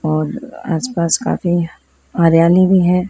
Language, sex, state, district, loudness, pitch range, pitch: Hindi, female, Madhya Pradesh, Dhar, -15 LUFS, 165-180 Hz, 170 Hz